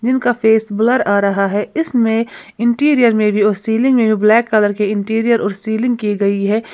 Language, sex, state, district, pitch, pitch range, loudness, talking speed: Hindi, female, Uttar Pradesh, Lalitpur, 220 Hz, 210-235 Hz, -15 LUFS, 185 wpm